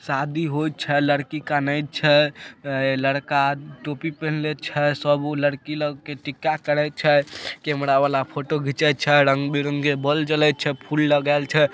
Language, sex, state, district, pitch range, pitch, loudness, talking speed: Maithili, male, Bihar, Samastipur, 145-150 Hz, 145 Hz, -22 LUFS, 150 wpm